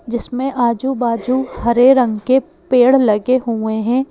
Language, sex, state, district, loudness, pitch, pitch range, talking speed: Hindi, female, Madhya Pradesh, Bhopal, -15 LUFS, 250 Hz, 235-260 Hz, 130 wpm